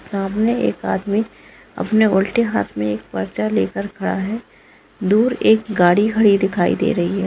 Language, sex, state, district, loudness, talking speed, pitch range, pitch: Hindi, female, Bihar, Jahanabad, -18 LUFS, 165 wpm, 175-220 Hz, 200 Hz